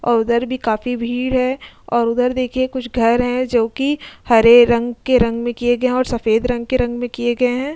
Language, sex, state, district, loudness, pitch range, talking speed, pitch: Hindi, female, Uttar Pradesh, Jyotiba Phule Nagar, -17 LUFS, 235-255 Hz, 230 wpm, 245 Hz